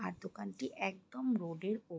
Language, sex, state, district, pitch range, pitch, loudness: Bengali, female, West Bengal, Jhargram, 165-220 Hz, 190 Hz, -40 LUFS